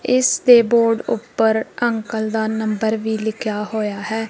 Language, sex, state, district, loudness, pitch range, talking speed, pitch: Punjabi, female, Punjab, Kapurthala, -18 LUFS, 220-235 Hz, 140 wpm, 220 Hz